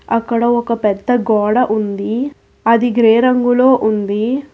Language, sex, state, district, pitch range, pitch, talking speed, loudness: Telugu, female, Telangana, Hyderabad, 215-245 Hz, 230 Hz, 120 wpm, -14 LUFS